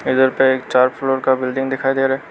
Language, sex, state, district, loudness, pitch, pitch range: Hindi, male, Arunachal Pradesh, Lower Dibang Valley, -17 LUFS, 130 Hz, 130-135 Hz